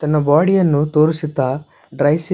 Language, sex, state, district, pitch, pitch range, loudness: Kannada, male, Karnataka, Shimoga, 150 Hz, 145-160 Hz, -16 LUFS